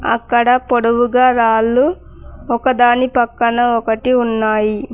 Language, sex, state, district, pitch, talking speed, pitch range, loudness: Telugu, female, Telangana, Mahabubabad, 240 Hz, 75 wpm, 230-250 Hz, -14 LUFS